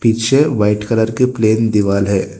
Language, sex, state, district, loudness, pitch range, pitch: Hindi, male, Telangana, Hyderabad, -14 LUFS, 105-115 Hz, 110 Hz